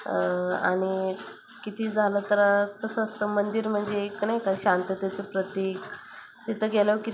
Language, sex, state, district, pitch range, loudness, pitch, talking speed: Marathi, female, Maharashtra, Chandrapur, 190-215 Hz, -27 LUFS, 205 Hz, 150 wpm